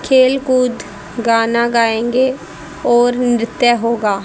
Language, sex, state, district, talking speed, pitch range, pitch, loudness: Hindi, female, Haryana, Jhajjar, 100 wpm, 230-250 Hz, 240 Hz, -14 LUFS